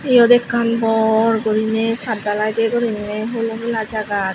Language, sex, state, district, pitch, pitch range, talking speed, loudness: Chakma, female, Tripura, Unakoti, 225 Hz, 215-230 Hz, 150 wpm, -18 LUFS